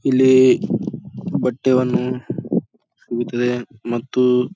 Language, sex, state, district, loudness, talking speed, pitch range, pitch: Kannada, male, Karnataka, Bijapur, -19 LUFS, 80 wpm, 120-130 Hz, 125 Hz